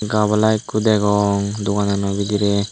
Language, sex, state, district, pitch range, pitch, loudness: Chakma, male, Tripura, Dhalai, 100-105 Hz, 105 Hz, -18 LUFS